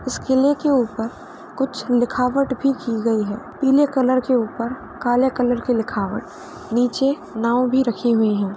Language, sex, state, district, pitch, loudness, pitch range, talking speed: Hindi, female, Uttar Pradesh, Varanasi, 250 Hz, -20 LUFS, 230-265 Hz, 170 wpm